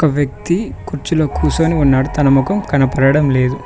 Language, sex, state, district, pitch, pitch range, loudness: Telugu, male, Telangana, Mahabubabad, 140 Hz, 135-160 Hz, -15 LUFS